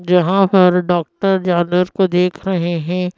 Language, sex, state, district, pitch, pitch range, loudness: Hindi, female, Madhya Pradesh, Bhopal, 180 Hz, 175-190 Hz, -15 LUFS